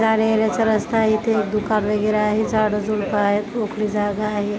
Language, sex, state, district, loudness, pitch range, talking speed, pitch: Marathi, female, Maharashtra, Dhule, -20 LUFS, 210-220 Hz, 170 wpm, 215 Hz